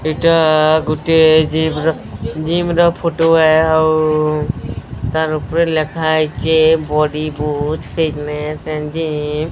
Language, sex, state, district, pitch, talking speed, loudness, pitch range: Odia, male, Odisha, Sambalpur, 155 Hz, 115 wpm, -15 LUFS, 150-160 Hz